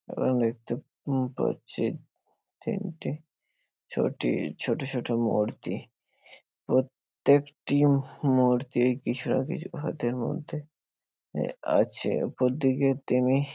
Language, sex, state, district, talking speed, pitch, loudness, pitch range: Bengali, male, West Bengal, Paschim Medinipur, 95 wpm, 130 Hz, -28 LUFS, 125-145 Hz